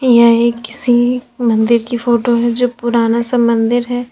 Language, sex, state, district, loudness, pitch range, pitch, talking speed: Hindi, female, Uttar Pradesh, Lalitpur, -13 LUFS, 235-245 Hz, 235 Hz, 175 wpm